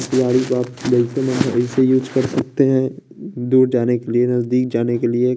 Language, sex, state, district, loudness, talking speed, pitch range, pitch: Hindi, male, Bihar, West Champaran, -18 LUFS, 135 wpm, 120-130 Hz, 125 Hz